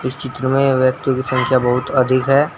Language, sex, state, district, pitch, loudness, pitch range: Hindi, male, Uttar Pradesh, Saharanpur, 130 Hz, -16 LUFS, 130-135 Hz